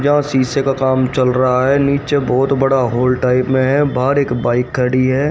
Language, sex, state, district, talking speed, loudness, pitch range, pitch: Hindi, male, Haryana, Rohtak, 215 wpm, -15 LUFS, 125-140 Hz, 130 Hz